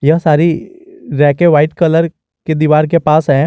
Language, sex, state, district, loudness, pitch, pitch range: Hindi, male, Jharkhand, Garhwa, -12 LUFS, 155 Hz, 150-170 Hz